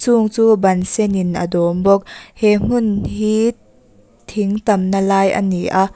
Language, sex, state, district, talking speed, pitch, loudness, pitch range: Mizo, female, Mizoram, Aizawl, 170 wpm, 195 Hz, -16 LUFS, 185-215 Hz